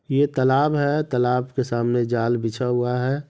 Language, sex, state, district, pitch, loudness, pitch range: Hindi, male, Bihar, Madhepura, 125 Hz, -22 LUFS, 120-140 Hz